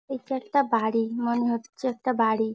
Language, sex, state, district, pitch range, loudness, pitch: Bengali, female, West Bengal, Jalpaiguri, 225-260 Hz, -26 LUFS, 235 Hz